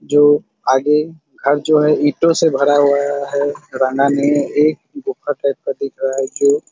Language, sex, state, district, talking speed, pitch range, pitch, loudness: Hindi, male, Chhattisgarh, Raigarh, 160 wpm, 140-150 Hz, 145 Hz, -16 LUFS